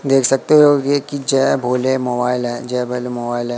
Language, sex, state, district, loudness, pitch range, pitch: Hindi, male, Madhya Pradesh, Katni, -16 LUFS, 125-135 Hz, 125 Hz